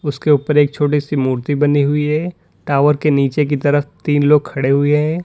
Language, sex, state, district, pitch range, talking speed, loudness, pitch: Hindi, male, Uttar Pradesh, Lalitpur, 145-150 Hz, 215 wpm, -15 LUFS, 145 Hz